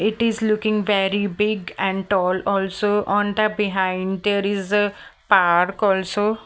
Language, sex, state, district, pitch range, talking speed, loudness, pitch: English, female, Maharashtra, Mumbai Suburban, 195-210 Hz, 150 wpm, -20 LUFS, 205 Hz